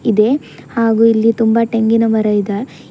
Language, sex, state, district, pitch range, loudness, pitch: Kannada, female, Karnataka, Bidar, 220-230 Hz, -14 LUFS, 225 Hz